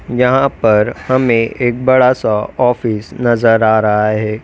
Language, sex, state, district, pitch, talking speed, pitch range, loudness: Hindi, male, Uttar Pradesh, Lalitpur, 115 Hz, 150 wpm, 110-125 Hz, -13 LUFS